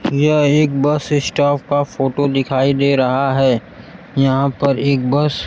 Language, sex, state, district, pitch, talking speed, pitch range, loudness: Hindi, male, Bihar, Kaimur, 140 Hz, 165 wpm, 135-145 Hz, -16 LUFS